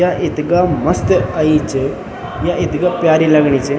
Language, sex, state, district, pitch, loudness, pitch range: Garhwali, male, Uttarakhand, Tehri Garhwal, 155 Hz, -14 LUFS, 145-175 Hz